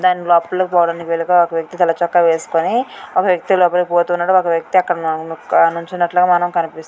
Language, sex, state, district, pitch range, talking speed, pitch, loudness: Telugu, female, Andhra Pradesh, Srikakulam, 165-180 Hz, 155 wpm, 175 Hz, -16 LUFS